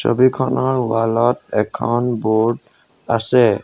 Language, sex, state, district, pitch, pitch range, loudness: Assamese, male, Assam, Sonitpur, 120 Hz, 115-125 Hz, -17 LUFS